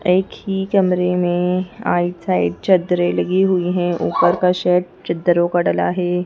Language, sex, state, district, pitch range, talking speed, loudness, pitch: Hindi, female, Madhya Pradesh, Bhopal, 175-185 Hz, 165 wpm, -18 LUFS, 180 Hz